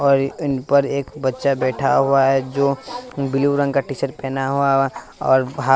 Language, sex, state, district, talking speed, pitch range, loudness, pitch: Hindi, male, Bihar, West Champaran, 155 wpm, 135-140 Hz, -19 LUFS, 135 Hz